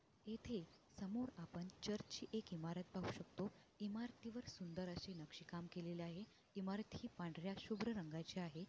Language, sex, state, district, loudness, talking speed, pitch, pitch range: Marathi, female, Maharashtra, Sindhudurg, -50 LUFS, 145 wpm, 190 Hz, 175-215 Hz